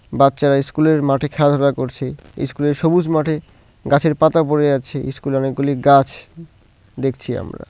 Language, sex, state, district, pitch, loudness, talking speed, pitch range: Bengali, male, West Bengal, Cooch Behar, 140 Hz, -17 LUFS, 130 wpm, 135-150 Hz